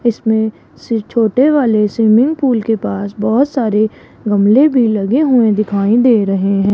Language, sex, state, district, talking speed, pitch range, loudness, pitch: Hindi, female, Rajasthan, Jaipur, 160 wpm, 210-245 Hz, -13 LUFS, 220 Hz